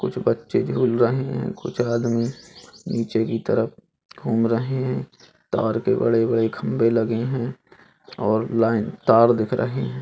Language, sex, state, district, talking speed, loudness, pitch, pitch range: Hindi, male, Uttar Pradesh, Gorakhpur, 140 wpm, -22 LUFS, 115 Hz, 115-120 Hz